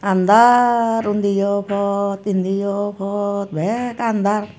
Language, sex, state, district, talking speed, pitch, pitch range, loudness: Chakma, female, Tripura, Dhalai, 90 wpm, 200 Hz, 200-220 Hz, -18 LUFS